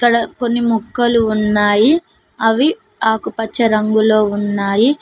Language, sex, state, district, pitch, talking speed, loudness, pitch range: Telugu, female, Telangana, Mahabubabad, 225 Hz, 95 wpm, -15 LUFS, 215-240 Hz